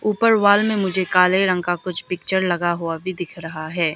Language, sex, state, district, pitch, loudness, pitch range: Hindi, female, Arunachal Pradesh, Lower Dibang Valley, 180 Hz, -19 LUFS, 170-190 Hz